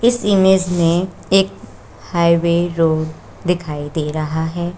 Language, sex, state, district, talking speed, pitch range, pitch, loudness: Hindi, female, Uttar Pradesh, Shamli, 125 wpm, 155-180 Hz, 170 Hz, -17 LUFS